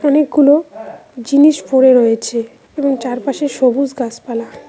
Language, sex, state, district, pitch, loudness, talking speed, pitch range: Bengali, female, West Bengal, Cooch Behar, 265 Hz, -14 LUFS, 100 wpm, 245-290 Hz